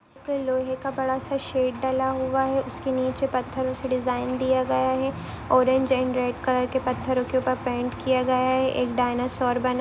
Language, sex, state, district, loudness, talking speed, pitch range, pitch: Hindi, female, Maharashtra, Pune, -25 LUFS, 185 wpm, 255-260 Hz, 255 Hz